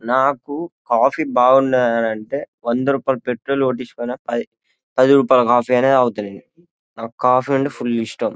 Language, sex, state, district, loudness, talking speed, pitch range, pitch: Telugu, male, Telangana, Karimnagar, -18 LUFS, 130 wpm, 120-135 Hz, 125 Hz